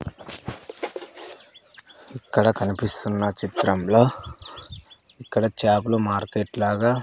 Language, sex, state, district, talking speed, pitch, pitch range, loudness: Telugu, male, Andhra Pradesh, Sri Satya Sai, 75 wpm, 105 Hz, 100-115 Hz, -21 LUFS